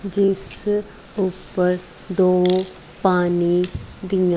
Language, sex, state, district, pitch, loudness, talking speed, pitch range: Punjabi, female, Punjab, Kapurthala, 185 Hz, -20 LUFS, 70 wpm, 180-195 Hz